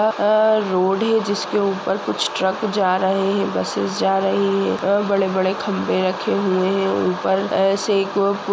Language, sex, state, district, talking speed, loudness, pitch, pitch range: Hindi, male, Uttar Pradesh, Budaun, 175 wpm, -19 LUFS, 195 Hz, 190-205 Hz